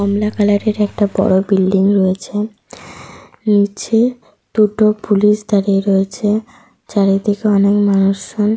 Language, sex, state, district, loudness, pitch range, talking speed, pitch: Bengali, female, Jharkhand, Sahebganj, -15 LUFS, 200-215 Hz, 105 wpm, 205 Hz